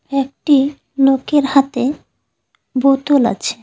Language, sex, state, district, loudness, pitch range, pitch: Bengali, female, West Bengal, Cooch Behar, -15 LUFS, 260-280 Hz, 275 Hz